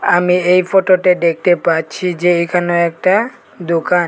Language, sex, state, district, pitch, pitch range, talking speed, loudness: Bengali, male, Tripura, Unakoti, 175 Hz, 170-180 Hz, 130 wpm, -14 LUFS